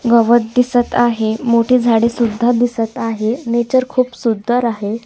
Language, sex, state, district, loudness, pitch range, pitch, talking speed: Marathi, female, Maharashtra, Sindhudurg, -15 LUFS, 230-245 Hz, 235 Hz, 140 wpm